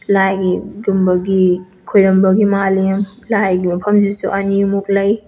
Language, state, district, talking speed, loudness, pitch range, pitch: Manipuri, Manipur, Imphal West, 100 wpm, -15 LUFS, 190-200 Hz, 195 Hz